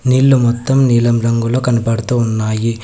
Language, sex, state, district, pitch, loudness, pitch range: Telugu, male, Telangana, Hyderabad, 120 Hz, -14 LUFS, 115-125 Hz